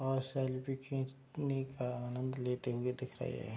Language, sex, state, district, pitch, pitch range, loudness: Hindi, male, Bihar, Madhepura, 130 Hz, 125-135 Hz, -39 LUFS